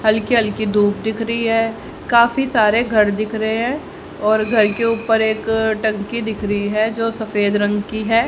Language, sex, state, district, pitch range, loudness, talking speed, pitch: Hindi, female, Haryana, Rohtak, 215-230 Hz, -18 LUFS, 190 wpm, 220 Hz